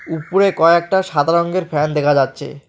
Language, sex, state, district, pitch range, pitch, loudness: Bengali, male, West Bengal, Alipurduar, 145-180 Hz, 165 Hz, -16 LUFS